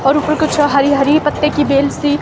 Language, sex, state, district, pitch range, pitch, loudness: Hindi, female, Himachal Pradesh, Shimla, 280-300 Hz, 290 Hz, -13 LUFS